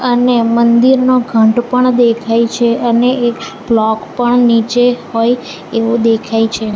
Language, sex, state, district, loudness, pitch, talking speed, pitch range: Gujarati, female, Gujarat, Valsad, -12 LUFS, 235 Hz, 135 wpm, 225-245 Hz